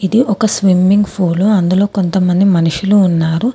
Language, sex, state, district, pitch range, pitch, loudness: Telugu, female, Telangana, Komaram Bheem, 180-205 Hz, 195 Hz, -12 LUFS